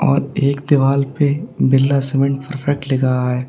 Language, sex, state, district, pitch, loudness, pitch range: Hindi, male, Uttar Pradesh, Lalitpur, 140 Hz, -17 LUFS, 135-140 Hz